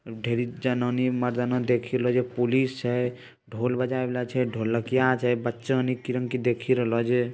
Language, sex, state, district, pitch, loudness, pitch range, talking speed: Maithili, male, Bihar, Bhagalpur, 125 Hz, -26 LUFS, 120-125 Hz, 145 wpm